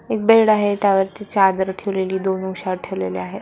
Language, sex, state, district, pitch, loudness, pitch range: Marathi, female, Maharashtra, Solapur, 190 Hz, -19 LUFS, 190-205 Hz